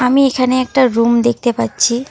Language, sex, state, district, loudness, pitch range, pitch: Bengali, female, West Bengal, Alipurduar, -14 LUFS, 235-255 Hz, 250 Hz